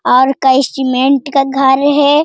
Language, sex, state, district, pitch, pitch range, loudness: Hindi, female, Bihar, Jamui, 270 Hz, 265-280 Hz, -11 LUFS